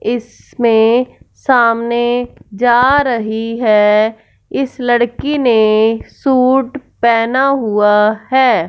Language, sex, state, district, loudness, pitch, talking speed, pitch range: Hindi, female, Punjab, Fazilka, -13 LUFS, 240 Hz, 85 wpm, 220-255 Hz